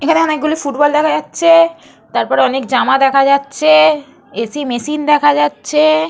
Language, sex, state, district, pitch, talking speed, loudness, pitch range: Bengali, female, Jharkhand, Jamtara, 295 Hz, 135 wpm, -13 LUFS, 270-310 Hz